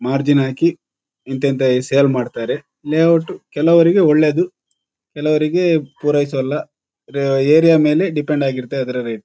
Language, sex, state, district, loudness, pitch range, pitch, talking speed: Kannada, male, Karnataka, Shimoga, -16 LUFS, 135-160 Hz, 145 Hz, 125 wpm